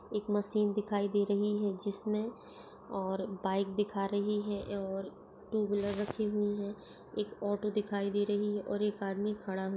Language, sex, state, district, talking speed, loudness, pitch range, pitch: Hindi, female, Uttar Pradesh, Etah, 185 wpm, -34 LUFS, 200-210 Hz, 205 Hz